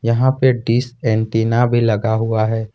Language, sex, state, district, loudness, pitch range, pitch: Hindi, male, Jharkhand, Ranchi, -17 LUFS, 110-120 Hz, 115 Hz